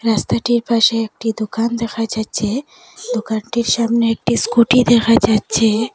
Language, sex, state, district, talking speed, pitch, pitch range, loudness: Bengali, female, Assam, Hailakandi, 120 wpm, 230 Hz, 220-235 Hz, -16 LUFS